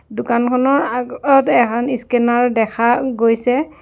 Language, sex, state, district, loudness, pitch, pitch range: Assamese, female, Assam, Sonitpur, -16 LUFS, 245 Hz, 235-260 Hz